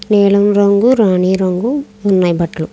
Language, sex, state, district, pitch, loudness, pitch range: Telugu, female, Andhra Pradesh, Krishna, 200 Hz, -13 LUFS, 185-210 Hz